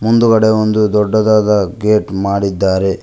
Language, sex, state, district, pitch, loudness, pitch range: Kannada, male, Karnataka, Koppal, 105 Hz, -13 LUFS, 100-110 Hz